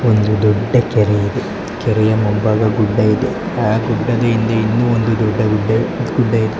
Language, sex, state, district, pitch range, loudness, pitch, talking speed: Kannada, male, Karnataka, Chamarajanagar, 105-115 Hz, -15 LUFS, 110 Hz, 145 wpm